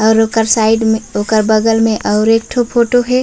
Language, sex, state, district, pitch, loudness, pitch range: Chhattisgarhi, female, Chhattisgarh, Raigarh, 225 Hz, -12 LUFS, 220-225 Hz